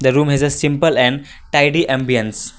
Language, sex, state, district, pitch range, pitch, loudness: English, male, Assam, Kamrup Metropolitan, 130-145 Hz, 140 Hz, -15 LUFS